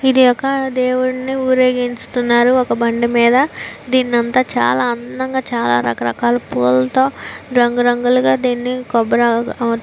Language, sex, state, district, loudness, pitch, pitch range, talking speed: Telugu, female, Andhra Pradesh, Visakhapatnam, -15 LUFS, 245 Hz, 235-255 Hz, 140 wpm